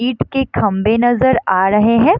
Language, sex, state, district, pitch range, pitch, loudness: Hindi, female, Bihar, Madhepura, 210-255 Hz, 235 Hz, -14 LUFS